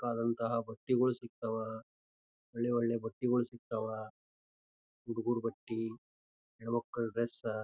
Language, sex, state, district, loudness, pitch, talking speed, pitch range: Kannada, male, Karnataka, Gulbarga, -36 LUFS, 115 Hz, 95 wpm, 110-120 Hz